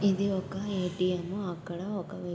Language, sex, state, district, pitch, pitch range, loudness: Telugu, female, Andhra Pradesh, Guntur, 185 Hz, 180-200 Hz, -32 LUFS